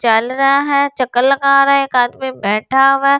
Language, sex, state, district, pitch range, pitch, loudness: Hindi, female, Delhi, New Delhi, 245-275 Hz, 270 Hz, -13 LUFS